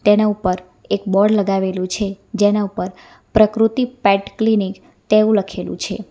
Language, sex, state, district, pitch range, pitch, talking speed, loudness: Gujarati, female, Gujarat, Valsad, 195-215 Hz, 205 Hz, 135 wpm, -18 LUFS